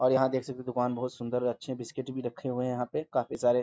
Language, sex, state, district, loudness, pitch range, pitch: Hindi, male, Bihar, Sitamarhi, -32 LUFS, 125-130 Hz, 125 Hz